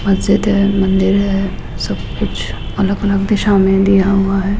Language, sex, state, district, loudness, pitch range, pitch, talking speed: Hindi, female, Rajasthan, Jaipur, -15 LUFS, 195-200 Hz, 195 Hz, 170 wpm